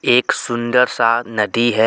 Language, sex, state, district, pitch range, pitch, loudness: Hindi, male, Jharkhand, Deoghar, 115-125 Hz, 120 Hz, -17 LUFS